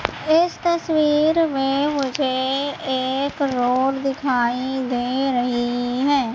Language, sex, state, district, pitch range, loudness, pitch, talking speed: Hindi, female, Madhya Pradesh, Katni, 255-290 Hz, -20 LUFS, 270 Hz, 95 wpm